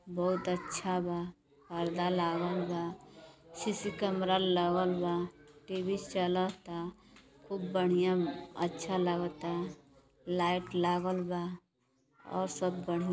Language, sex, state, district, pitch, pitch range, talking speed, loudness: Bhojpuri, female, Uttar Pradesh, Deoria, 175 Hz, 170-185 Hz, 110 wpm, -34 LUFS